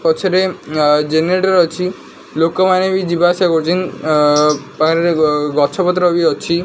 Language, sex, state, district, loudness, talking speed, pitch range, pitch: Odia, male, Odisha, Khordha, -14 LUFS, 145 wpm, 155-185 Hz, 170 Hz